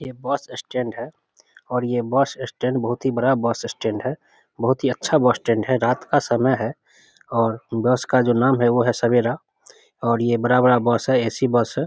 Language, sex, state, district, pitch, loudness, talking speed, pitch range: Hindi, male, Bihar, Samastipur, 125 Hz, -21 LUFS, 190 wpm, 120-130 Hz